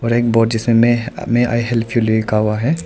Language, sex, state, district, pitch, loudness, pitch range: Hindi, male, Arunachal Pradesh, Lower Dibang Valley, 115 Hz, -16 LUFS, 115-120 Hz